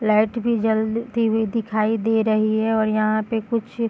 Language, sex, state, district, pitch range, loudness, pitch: Hindi, female, Bihar, Bhagalpur, 215-230 Hz, -21 LUFS, 220 Hz